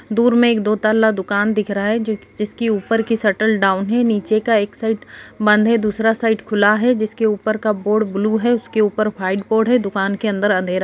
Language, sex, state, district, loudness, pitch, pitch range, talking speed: Hindi, female, Chhattisgarh, Sukma, -17 LUFS, 215 Hz, 205-225 Hz, 235 wpm